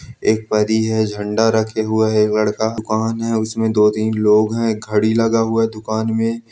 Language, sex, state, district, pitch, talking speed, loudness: Hindi, male, Telangana, Karimnagar, 110 Hz, 185 wpm, -17 LUFS